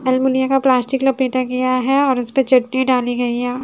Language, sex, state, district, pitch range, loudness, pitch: Hindi, female, Haryana, Charkhi Dadri, 250-265 Hz, -17 LUFS, 255 Hz